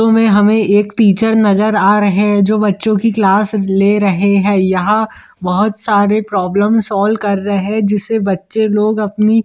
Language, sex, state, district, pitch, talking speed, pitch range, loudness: Hindi, male, Chhattisgarh, Bilaspur, 210 Hz, 170 wpm, 200-215 Hz, -13 LUFS